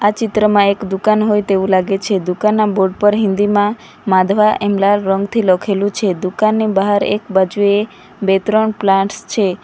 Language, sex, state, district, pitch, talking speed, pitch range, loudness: Gujarati, female, Gujarat, Valsad, 200 Hz, 160 wpm, 195-210 Hz, -14 LUFS